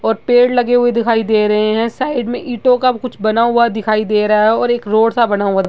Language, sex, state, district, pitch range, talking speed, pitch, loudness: Hindi, female, Uttar Pradesh, Gorakhpur, 215-245 Hz, 275 wpm, 230 Hz, -14 LUFS